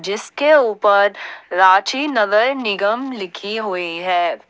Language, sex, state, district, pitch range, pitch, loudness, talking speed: Hindi, female, Jharkhand, Ranchi, 190-225 Hz, 205 Hz, -17 LUFS, 105 wpm